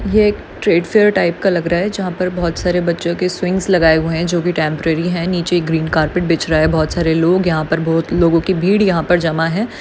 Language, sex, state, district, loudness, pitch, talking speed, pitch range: Hindi, female, Maharashtra, Solapur, -15 LUFS, 175 Hz, 255 wpm, 165-180 Hz